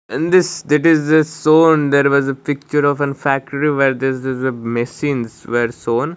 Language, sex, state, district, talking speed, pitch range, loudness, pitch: English, male, Odisha, Malkangiri, 195 wpm, 130-155 Hz, -16 LUFS, 140 Hz